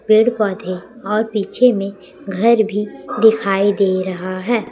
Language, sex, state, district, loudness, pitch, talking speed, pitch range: Hindi, female, Chhattisgarh, Raipur, -17 LUFS, 210 Hz, 140 wpm, 195-225 Hz